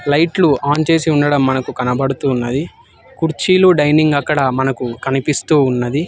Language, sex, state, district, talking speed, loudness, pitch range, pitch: Telugu, male, Telangana, Hyderabad, 130 wpm, -15 LUFS, 135-155 Hz, 145 Hz